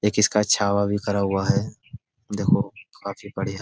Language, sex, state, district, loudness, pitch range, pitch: Hindi, male, Uttar Pradesh, Budaun, -23 LUFS, 100-110 Hz, 105 Hz